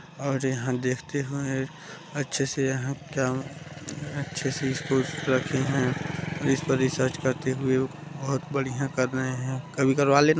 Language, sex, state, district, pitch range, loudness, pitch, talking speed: Hindi, male, Chhattisgarh, Balrampur, 130-150 Hz, -27 LUFS, 135 Hz, 155 wpm